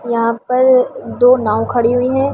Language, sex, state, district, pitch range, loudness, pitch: Hindi, female, Delhi, New Delhi, 235-255 Hz, -14 LUFS, 245 Hz